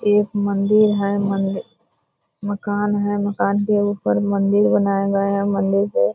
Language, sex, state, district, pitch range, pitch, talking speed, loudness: Hindi, female, Bihar, Purnia, 195-205 Hz, 200 Hz, 155 wpm, -19 LUFS